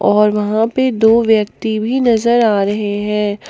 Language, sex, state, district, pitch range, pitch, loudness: Hindi, female, Jharkhand, Palamu, 210-235 Hz, 220 Hz, -14 LUFS